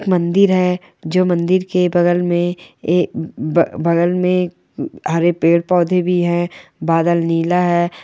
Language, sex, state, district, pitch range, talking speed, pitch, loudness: Hindi, female, Rajasthan, Churu, 170-180 Hz, 110 wpm, 175 Hz, -16 LUFS